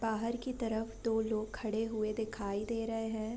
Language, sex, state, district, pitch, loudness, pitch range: Hindi, female, Uttar Pradesh, Deoria, 225 Hz, -36 LUFS, 220-225 Hz